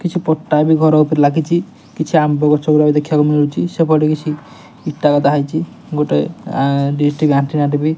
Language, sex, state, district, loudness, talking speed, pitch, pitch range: Odia, male, Odisha, Nuapada, -15 LUFS, 180 wpm, 150 Hz, 145-160 Hz